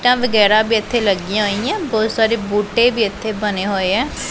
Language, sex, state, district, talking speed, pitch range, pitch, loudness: Punjabi, female, Punjab, Pathankot, 195 wpm, 205-230 Hz, 215 Hz, -16 LUFS